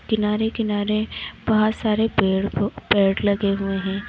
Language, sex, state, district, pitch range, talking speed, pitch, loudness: Hindi, female, Uttar Pradesh, Lalitpur, 195-215 Hz, 130 wpm, 210 Hz, -21 LUFS